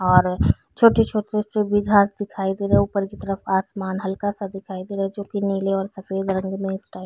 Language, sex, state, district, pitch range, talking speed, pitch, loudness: Hindi, female, Chhattisgarh, Bilaspur, 190-205 Hz, 230 wpm, 195 Hz, -22 LUFS